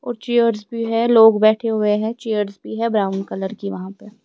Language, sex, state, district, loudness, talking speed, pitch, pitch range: Hindi, female, Himachal Pradesh, Shimla, -18 LUFS, 240 wpm, 220 Hz, 210-230 Hz